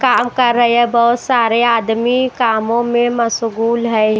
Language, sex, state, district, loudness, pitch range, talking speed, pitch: Hindi, female, Haryana, Rohtak, -14 LUFS, 230-240 Hz, 155 wpm, 235 Hz